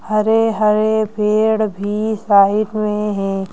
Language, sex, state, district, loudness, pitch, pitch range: Hindi, female, Madhya Pradesh, Bhopal, -16 LUFS, 215 Hz, 205-215 Hz